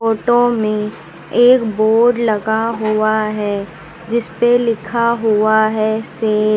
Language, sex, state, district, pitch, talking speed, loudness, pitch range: Hindi, female, Uttar Pradesh, Lucknow, 220 Hz, 120 wpm, -15 LUFS, 215-235 Hz